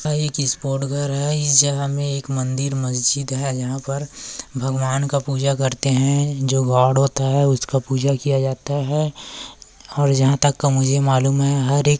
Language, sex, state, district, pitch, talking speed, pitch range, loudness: Hindi, male, Chhattisgarh, Korba, 135 Hz, 180 wpm, 135-140 Hz, -19 LUFS